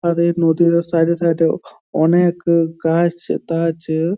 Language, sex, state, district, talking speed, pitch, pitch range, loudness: Bengali, male, West Bengal, Jhargram, 145 wpm, 170 Hz, 165-170 Hz, -17 LUFS